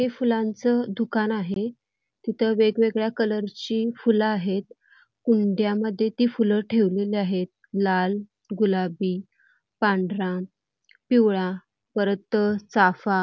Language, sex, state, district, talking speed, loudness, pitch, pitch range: Marathi, female, Karnataka, Belgaum, 95 wpm, -24 LUFS, 215 Hz, 195-225 Hz